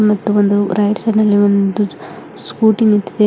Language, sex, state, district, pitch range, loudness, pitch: Kannada, female, Karnataka, Bidar, 205-215 Hz, -14 LUFS, 210 Hz